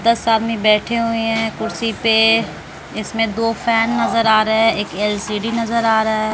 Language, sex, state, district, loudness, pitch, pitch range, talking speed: Hindi, female, Bihar, West Champaran, -17 LUFS, 225 Hz, 215-230 Hz, 190 wpm